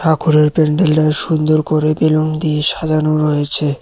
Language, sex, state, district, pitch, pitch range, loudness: Bengali, male, Tripura, West Tripura, 155 Hz, 150-155 Hz, -14 LUFS